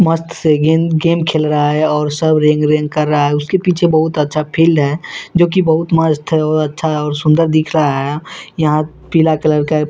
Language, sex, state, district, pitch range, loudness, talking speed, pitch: Hindi, male, Chhattisgarh, Raipur, 150-165 Hz, -14 LUFS, 230 wpm, 155 Hz